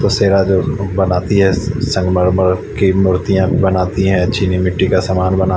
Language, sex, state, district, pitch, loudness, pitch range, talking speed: Hindi, male, Haryana, Charkhi Dadri, 95 Hz, -14 LUFS, 90-95 Hz, 150 wpm